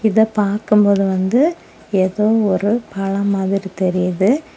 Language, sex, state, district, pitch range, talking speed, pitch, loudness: Tamil, female, Tamil Nadu, Kanyakumari, 190-220 Hz, 105 wpm, 200 Hz, -17 LUFS